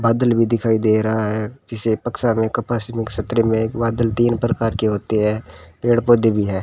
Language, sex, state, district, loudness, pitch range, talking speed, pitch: Hindi, male, Rajasthan, Bikaner, -19 LUFS, 110-115 Hz, 145 wpm, 115 Hz